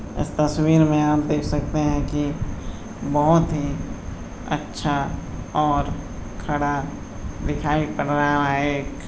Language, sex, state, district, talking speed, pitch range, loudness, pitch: Hindi, male, Uttar Pradesh, Budaun, 110 wpm, 140-150 Hz, -22 LUFS, 145 Hz